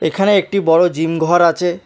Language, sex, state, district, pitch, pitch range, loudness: Bengali, male, West Bengal, Alipurduar, 175 Hz, 165-190 Hz, -14 LUFS